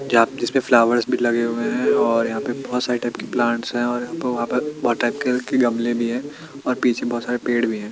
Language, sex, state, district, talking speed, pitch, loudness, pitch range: Hindi, male, Chandigarh, Chandigarh, 270 wpm, 120 Hz, -21 LUFS, 120-125 Hz